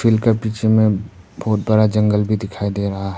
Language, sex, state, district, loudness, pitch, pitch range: Hindi, male, Arunachal Pradesh, Papum Pare, -18 LUFS, 105 Hz, 100-110 Hz